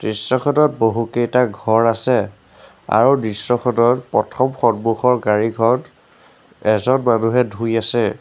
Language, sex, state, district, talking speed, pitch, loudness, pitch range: Assamese, male, Assam, Sonitpur, 95 wpm, 115 Hz, -17 LUFS, 115-125 Hz